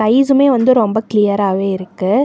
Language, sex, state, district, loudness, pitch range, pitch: Tamil, female, Karnataka, Bangalore, -14 LUFS, 200-255 Hz, 220 Hz